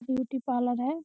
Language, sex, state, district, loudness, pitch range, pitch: Hindi, female, Uttar Pradesh, Jyotiba Phule Nagar, -29 LUFS, 245-265 Hz, 260 Hz